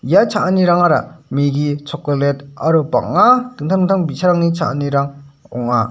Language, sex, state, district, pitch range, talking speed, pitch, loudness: Garo, male, Meghalaya, West Garo Hills, 140-180 Hz, 110 wpm, 155 Hz, -16 LUFS